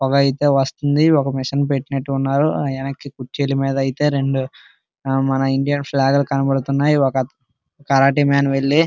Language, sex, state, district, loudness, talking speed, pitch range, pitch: Telugu, male, Andhra Pradesh, Srikakulam, -18 LUFS, 140 wpm, 135-140 Hz, 135 Hz